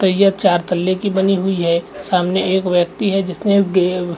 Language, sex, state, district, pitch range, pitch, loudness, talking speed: Hindi, male, Chhattisgarh, Rajnandgaon, 180-195 Hz, 190 Hz, -16 LUFS, 185 wpm